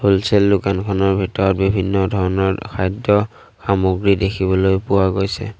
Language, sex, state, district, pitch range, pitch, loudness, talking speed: Assamese, male, Assam, Sonitpur, 95-100 Hz, 95 Hz, -17 LUFS, 105 wpm